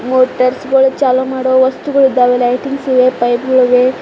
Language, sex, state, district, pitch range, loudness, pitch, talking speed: Kannada, female, Karnataka, Bidar, 250-265 Hz, -12 LUFS, 260 Hz, 150 wpm